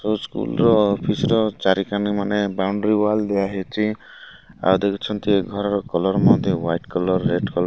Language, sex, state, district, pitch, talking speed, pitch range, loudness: Odia, male, Odisha, Malkangiri, 100 Hz, 150 wpm, 95-105 Hz, -20 LUFS